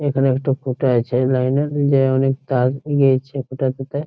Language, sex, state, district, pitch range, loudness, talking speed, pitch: Bengali, male, West Bengal, Jhargram, 130-140 Hz, -18 LUFS, 220 wpm, 135 Hz